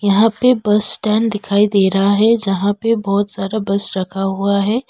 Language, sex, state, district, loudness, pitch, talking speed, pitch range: Hindi, female, West Bengal, Darjeeling, -15 LUFS, 205 Hz, 195 wpm, 195-220 Hz